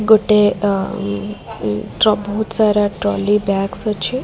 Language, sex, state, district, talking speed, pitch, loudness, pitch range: Odia, female, Odisha, Khordha, 125 wpm, 205 Hz, -17 LUFS, 195-215 Hz